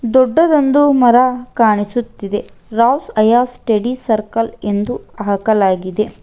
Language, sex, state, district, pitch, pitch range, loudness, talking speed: Kannada, female, Karnataka, Bangalore, 230 Hz, 210-250 Hz, -15 LUFS, 85 wpm